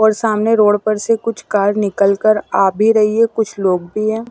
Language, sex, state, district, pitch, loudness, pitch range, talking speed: Hindi, female, Himachal Pradesh, Shimla, 215 Hz, -15 LUFS, 205-225 Hz, 225 wpm